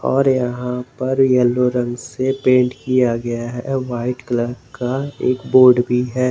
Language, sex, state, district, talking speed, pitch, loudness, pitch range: Hindi, male, Jharkhand, Garhwa, 160 wpm, 125 Hz, -18 LUFS, 120-130 Hz